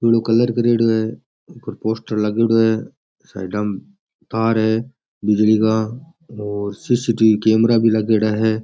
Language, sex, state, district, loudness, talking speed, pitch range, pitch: Rajasthani, male, Rajasthan, Nagaur, -18 LUFS, 140 wpm, 110-115 Hz, 110 Hz